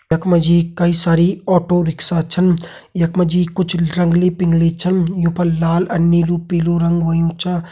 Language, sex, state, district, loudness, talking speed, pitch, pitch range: Hindi, male, Uttarakhand, Uttarkashi, -16 LUFS, 185 wpm, 170 Hz, 165-180 Hz